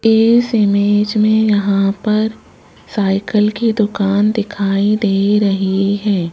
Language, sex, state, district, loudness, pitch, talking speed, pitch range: Hindi, female, Rajasthan, Jaipur, -15 LUFS, 205 Hz, 115 wpm, 200-215 Hz